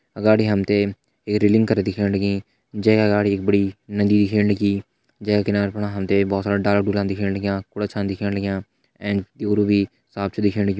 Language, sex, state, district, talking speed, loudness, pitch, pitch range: Hindi, male, Uttarakhand, Tehri Garhwal, 205 wpm, -21 LUFS, 100 Hz, 100-105 Hz